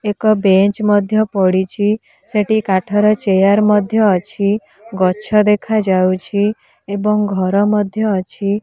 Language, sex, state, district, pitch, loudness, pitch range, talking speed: Odia, female, Odisha, Nuapada, 205 Hz, -15 LUFS, 195-210 Hz, 120 wpm